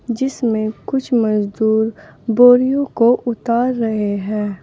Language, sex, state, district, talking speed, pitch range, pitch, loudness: Hindi, female, Uttar Pradesh, Saharanpur, 105 wpm, 215-245 Hz, 230 Hz, -16 LUFS